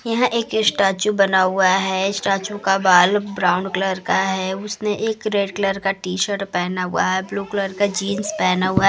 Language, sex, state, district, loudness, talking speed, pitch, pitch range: Hindi, female, Bihar, Kaimur, -19 LUFS, 200 wpm, 195 Hz, 190-205 Hz